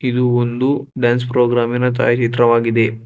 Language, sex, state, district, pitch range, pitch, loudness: Kannada, male, Karnataka, Bangalore, 120-125 Hz, 120 Hz, -16 LUFS